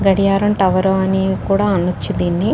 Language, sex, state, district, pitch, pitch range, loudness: Telugu, female, Telangana, Nalgonda, 190 Hz, 185-195 Hz, -16 LUFS